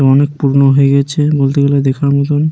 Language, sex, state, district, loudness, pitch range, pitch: Bengali, male, West Bengal, Paschim Medinipur, -12 LUFS, 140-145 Hz, 140 Hz